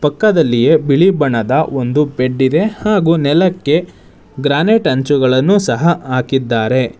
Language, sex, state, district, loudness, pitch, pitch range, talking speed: Kannada, male, Karnataka, Bangalore, -13 LUFS, 145 Hz, 130-170 Hz, 105 wpm